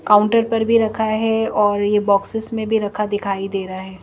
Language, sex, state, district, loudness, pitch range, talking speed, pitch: Hindi, female, Madhya Pradesh, Bhopal, -18 LUFS, 200-225 Hz, 225 wpm, 210 Hz